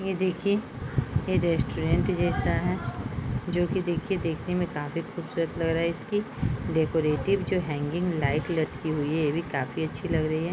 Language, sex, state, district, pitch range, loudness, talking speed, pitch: Hindi, female, Uttar Pradesh, Muzaffarnagar, 145-175 Hz, -28 LUFS, 160 wpm, 160 Hz